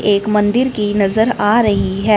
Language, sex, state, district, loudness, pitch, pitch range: Hindi, female, Punjab, Fazilka, -15 LUFS, 210 Hz, 205-220 Hz